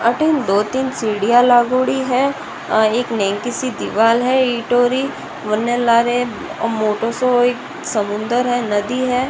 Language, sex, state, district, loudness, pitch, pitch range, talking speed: Rajasthani, female, Rajasthan, Nagaur, -17 LUFS, 245 Hz, 225-255 Hz, 135 wpm